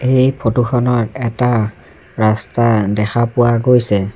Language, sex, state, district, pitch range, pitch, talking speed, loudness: Assamese, male, Assam, Sonitpur, 110-125 Hz, 120 Hz, 115 wpm, -15 LUFS